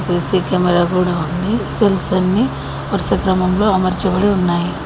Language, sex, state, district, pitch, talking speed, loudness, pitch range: Telugu, female, Telangana, Mahabubabad, 185 Hz, 125 wpm, -16 LUFS, 175-190 Hz